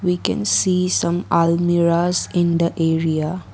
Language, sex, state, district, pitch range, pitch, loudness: English, female, Assam, Kamrup Metropolitan, 165-180 Hz, 170 Hz, -18 LUFS